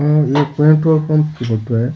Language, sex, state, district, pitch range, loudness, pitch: Rajasthani, male, Rajasthan, Churu, 125-155 Hz, -15 LUFS, 150 Hz